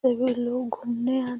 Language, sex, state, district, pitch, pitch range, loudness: Hindi, female, Bihar, Gaya, 250 Hz, 240-255 Hz, -27 LUFS